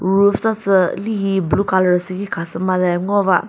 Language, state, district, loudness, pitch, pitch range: Chakhesang, Nagaland, Dimapur, -17 LUFS, 190 Hz, 180-200 Hz